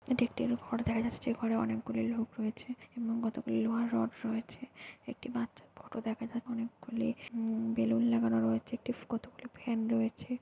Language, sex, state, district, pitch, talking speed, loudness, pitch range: Bengali, female, West Bengal, Jhargram, 230 Hz, 165 wpm, -35 LUFS, 185-240 Hz